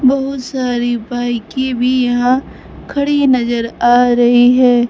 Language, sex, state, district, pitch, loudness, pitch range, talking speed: Hindi, male, Bihar, Kaimur, 245 Hz, -14 LUFS, 240-260 Hz, 120 wpm